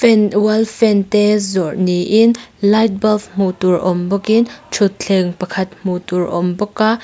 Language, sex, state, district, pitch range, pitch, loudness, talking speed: Mizo, female, Mizoram, Aizawl, 185-215 Hz, 200 Hz, -15 LUFS, 155 wpm